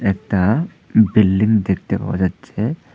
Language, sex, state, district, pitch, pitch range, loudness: Bengali, male, Tripura, Unakoti, 105 Hz, 95-110 Hz, -18 LUFS